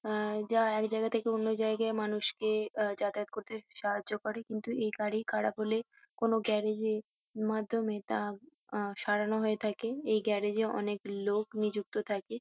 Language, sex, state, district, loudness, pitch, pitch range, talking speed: Bengali, female, West Bengal, Kolkata, -33 LUFS, 215 Hz, 210-220 Hz, 160 wpm